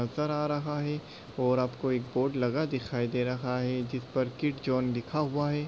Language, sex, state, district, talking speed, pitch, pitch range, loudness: Hindi, male, Uttar Pradesh, Budaun, 200 wpm, 130 Hz, 125-150 Hz, -31 LUFS